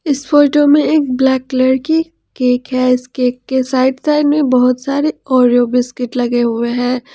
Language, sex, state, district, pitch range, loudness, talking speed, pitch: Hindi, female, Jharkhand, Ranchi, 250-290 Hz, -14 LUFS, 185 wpm, 260 Hz